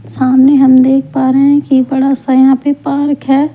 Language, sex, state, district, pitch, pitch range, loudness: Hindi, female, Bihar, Patna, 270 Hz, 265-280 Hz, -10 LUFS